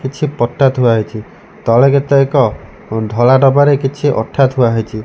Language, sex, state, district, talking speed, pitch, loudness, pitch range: Odia, male, Odisha, Malkangiri, 155 wpm, 130 Hz, -13 LUFS, 110-140 Hz